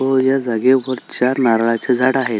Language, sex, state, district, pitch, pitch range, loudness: Marathi, male, Maharashtra, Solapur, 130 Hz, 115-130 Hz, -16 LUFS